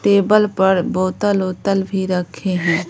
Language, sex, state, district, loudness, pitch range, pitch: Hindi, female, Bihar, Patna, -17 LUFS, 185-200 Hz, 190 Hz